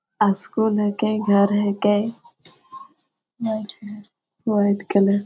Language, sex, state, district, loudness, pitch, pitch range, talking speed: Hindi, female, Bihar, Jamui, -21 LUFS, 210 Hz, 200-220 Hz, 125 wpm